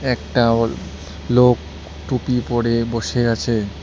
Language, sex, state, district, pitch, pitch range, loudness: Bengali, male, West Bengal, Cooch Behar, 115 Hz, 90-125 Hz, -19 LUFS